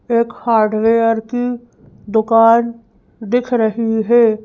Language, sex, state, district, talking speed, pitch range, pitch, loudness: Hindi, female, Madhya Pradesh, Bhopal, 80 wpm, 220-235 Hz, 230 Hz, -15 LUFS